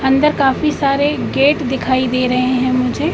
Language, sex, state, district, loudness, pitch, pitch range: Hindi, female, Madhya Pradesh, Katni, -15 LUFS, 265 Hz, 255-290 Hz